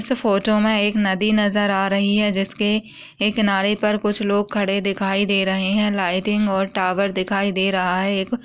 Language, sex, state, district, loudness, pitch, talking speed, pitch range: Hindi, female, Uttar Pradesh, Muzaffarnagar, -19 LUFS, 200 Hz, 205 wpm, 195-210 Hz